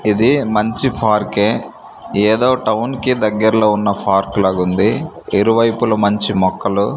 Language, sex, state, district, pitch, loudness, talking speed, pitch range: Telugu, male, Andhra Pradesh, Manyam, 105 Hz, -15 LUFS, 110 wpm, 100-115 Hz